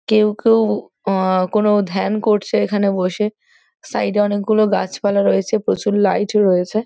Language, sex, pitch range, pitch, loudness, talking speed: Bengali, female, 195-215 Hz, 205 Hz, -17 LUFS, 140 wpm